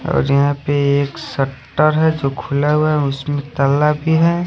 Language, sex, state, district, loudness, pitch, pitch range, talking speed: Hindi, male, Odisha, Khordha, -17 LUFS, 145 Hz, 140-155 Hz, 190 wpm